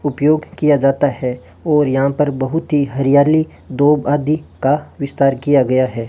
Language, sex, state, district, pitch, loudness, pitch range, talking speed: Hindi, male, Rajasthan, Bikaner, 145 Hz, -16 LUFS, 135-150 Hz, 165 wpm